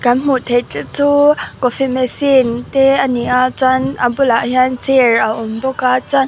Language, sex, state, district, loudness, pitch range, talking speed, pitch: Mizo, female, Mizoram, Aizawl, -14 LUFS, 245-270 Hz, 180 wpm, 255 Hz